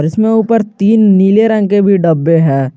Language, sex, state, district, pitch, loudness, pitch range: Hindi, male, Jharkhand, Garhwa, 200 Hz, -10 LUFS, 165-220 Hz